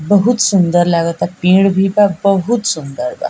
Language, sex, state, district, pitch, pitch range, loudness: Bhojpuri, female, Bihar, East Champaran, 190 Hz, 170-205 Hz, -13 LUFS